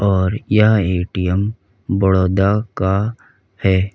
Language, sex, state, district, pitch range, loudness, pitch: Hindi, male, Uttar Pradesh, Lalitpur, 95-105 Hz, -17 LUFS, 95 Hz